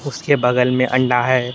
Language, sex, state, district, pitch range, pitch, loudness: Hindi, male, Tripura, West Tripura, 125-130 Hz, 130 Hz, -16 LUFS